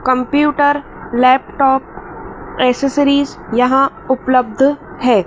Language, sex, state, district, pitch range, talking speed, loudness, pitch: Hindi, female, Madhya Pradesh, Dhar, 255-285 Hz, 70 wpm, -14 LUFS, 265 Hz